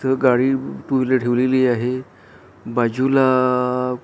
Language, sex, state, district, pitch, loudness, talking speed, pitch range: Marathi, male, Maharashtra, Gondia, 125 Hz, -19 LUFS, 120 wpm, 120-130 Hz